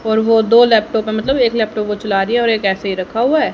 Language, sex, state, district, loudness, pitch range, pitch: Hindi, female, Haryana, Charkhi Dadri, -15 LUFS, 210-235 Hz, 220 Hz